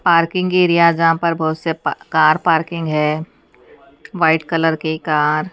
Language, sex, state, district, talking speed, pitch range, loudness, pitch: Hindi, female, Haryana, Charkhi Dadri, 175 wpm, 155-170 Hz, -16 LUFS, 165 Hz